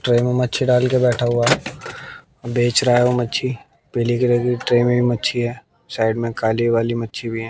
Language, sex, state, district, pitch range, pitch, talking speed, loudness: Hindi, male, Haryana, Jhajjar, 115-125 Hz, 120 Hz, 200 wpm, -19 LUFS